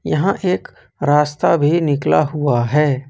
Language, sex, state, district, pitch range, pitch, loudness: Hindi, male, Jharkhand, Ranchi, 145-165 Hz, 150 Hz, -17 LUFS